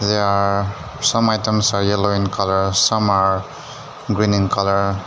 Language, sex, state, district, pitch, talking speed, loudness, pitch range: English, male, Nagaland, Dimapur, 100 Hz, 140 wpm, -18 LUFS, 100-105 Hz